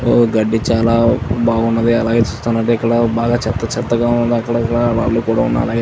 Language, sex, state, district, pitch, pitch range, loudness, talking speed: Telugu, male, Andhra Pradesh, Chittoor, 115 Hz, 115-120 Hz, -15 LUFS, 145 wpm